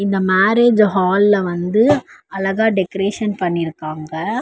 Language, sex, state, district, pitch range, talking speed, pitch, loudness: Tamil, female, Tamil Nadu, Chennai, 180-215 Hz, 95 wpm, 195 Hz, -16 LUFS